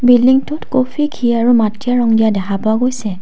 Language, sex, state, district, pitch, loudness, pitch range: Assamese, female, Assam, Kamrup Metropolitan, 245 Hz, -14 LUFS, 220-255 Hz